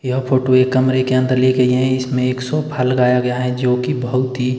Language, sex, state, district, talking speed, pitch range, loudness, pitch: Hindi, male, Himachal Pradesh, Shimla, 235 wpm, 125-130 Hz, -16 LUFS, 130 Hz